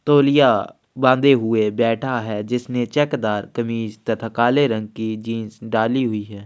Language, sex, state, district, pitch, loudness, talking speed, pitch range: Hindi, male, Chhattisgarh, Sukma, 115 Hz, -19 LUFS, 160 wpm, 110-130 Hz